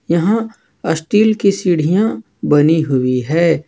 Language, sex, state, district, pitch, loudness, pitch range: Hindi, male, Jharkhand, Ranchi, 170 Hz, -15 LUFS, 155-205 Hz